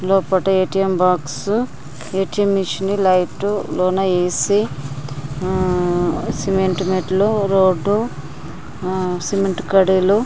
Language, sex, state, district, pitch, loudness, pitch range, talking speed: Telugu, female, Andhra Pradesh, Anantapur, 185 Hz, -18 LUFS, 180-195 Hz, 115 wpm